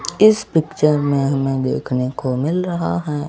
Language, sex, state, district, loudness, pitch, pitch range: Hindi, male, Bihar, Kaimur, -18 LUFS, 145 Hz, 130-160 Hz